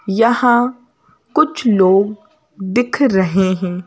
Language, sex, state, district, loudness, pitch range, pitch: Hindi, female, Madhya Pradesh, Bhopal, -15 LUFS, 190-245 Hz, 215 Hz